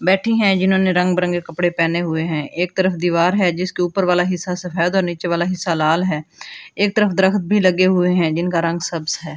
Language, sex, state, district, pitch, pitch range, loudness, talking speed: Hindi, female, Delhi, New Delhi, 180 Hz, 170-185 Hz, -18 LUFS, 225 wpm